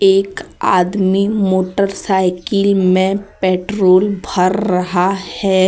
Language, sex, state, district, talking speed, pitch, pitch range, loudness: Hindi, female, Jharkhand, Deoghar, 85 wpm, 190 Hz, 185-200 Hz, -15 LUFS